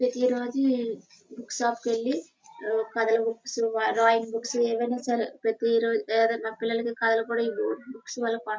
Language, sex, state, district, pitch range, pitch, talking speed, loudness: Telugu, female, Andhra Pradesh, Srikakulam, 225-245 Hz, 230 Hz, 90 wpm, -27 LUFS